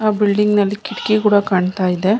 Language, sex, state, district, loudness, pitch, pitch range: Kannada, female, Karnataka, Mysore, -16 LUFS, 205 Hz, 190-210 Hz